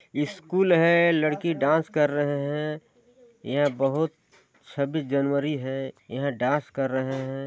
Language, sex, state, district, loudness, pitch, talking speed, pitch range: Hindi, male, Chhattisgarh, Sarguja, -25 LUFS, 145 Hz, 135 wpm, 135-160 Hz